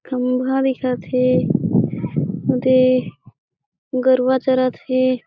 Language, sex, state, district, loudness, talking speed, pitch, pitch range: Chhattisgarhi, female, Chhattisgarh, Jashpur, -18 LUFS, 80 wpm, 255 Hz, 255-260 Hz